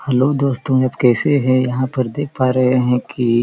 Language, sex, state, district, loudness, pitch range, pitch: Hindi, male, Chhattisgarh, Korba, -17 LUFS, 125-140 Hz, 130 Hz